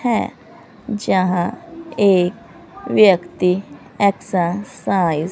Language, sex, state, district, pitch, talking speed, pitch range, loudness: Hindi, female, Haryana, Rohtak, 195 Hz, 70 wpm, 180-220 Hz, -18 LUFS